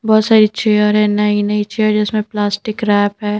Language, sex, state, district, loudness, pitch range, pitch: Hindi, female, Madhya Pradesh, Bhopal, -14 LUFS, 210-215 Hz, 210 Hz